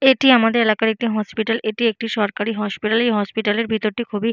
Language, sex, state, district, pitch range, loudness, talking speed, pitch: Bengali, female, West Bengal, Purulia, 215-230 Hz, -19 LUFS, 220 wpm, 225 Hz